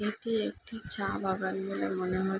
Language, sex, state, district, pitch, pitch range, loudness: Bengali, female, West Bengal, Jalpaiguri, 190 Hz, 190-220 Hz, -33 LUFS